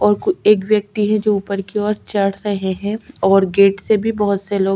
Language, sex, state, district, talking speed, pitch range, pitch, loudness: Hindi, female, Chhattisgarh, Sukma, 250 wpm, 195-215 Hz, 205 Hz, -17 LUFS